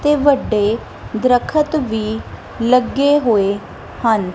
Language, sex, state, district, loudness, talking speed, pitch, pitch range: Punjabi, female, Punjab, Kapurthala, -17 LUFS, 95 wpm, 235 Hz, 215-285 Hz